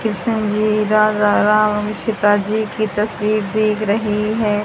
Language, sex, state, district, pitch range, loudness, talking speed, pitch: Hindi, male, Haryana, Jhajjar, 210-215 Hz, -17 LUFS, 140 wpm, 215 Hz